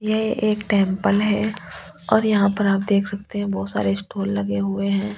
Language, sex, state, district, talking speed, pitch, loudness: Hindi, female, Delhi, New Delhi, 195 wpm, 200 Hz, -21 LUFS